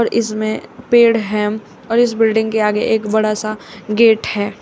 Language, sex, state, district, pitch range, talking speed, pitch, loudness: Hindi, female, Uttar Pradesh, Shamli, 215-230 Hz, 170 wpm, 220 Hz, -16 LUFS